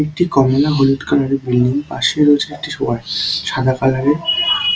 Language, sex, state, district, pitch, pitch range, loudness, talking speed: Bengali, male, West Bengal, Dakshin Dinajpur, 135 Hz, 135-145 Hz, -16 LUFS, 150 wpm